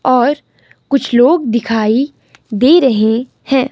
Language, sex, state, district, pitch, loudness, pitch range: Hindi, female, Himachal Pradesh, Shimla, 255 Hz, -13 LUFS, 230-270 Hz